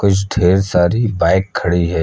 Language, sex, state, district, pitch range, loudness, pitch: Hindi, male, Uttar Pradesh, Lucknow, 85-100 Hz, -15 LUFS, 95 Hz